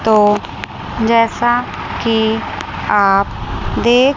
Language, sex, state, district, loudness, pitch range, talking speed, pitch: Hindi, female, Chandigarh, Chandigarh, -15 LUFS, 210-240 Hz, 70 wpm, 225 Hz